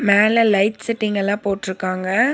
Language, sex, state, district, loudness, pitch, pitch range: Tamil, female, Tamil Nadu, Nilgiris, -18 LUFS, 205 Hz, 195-220 Hz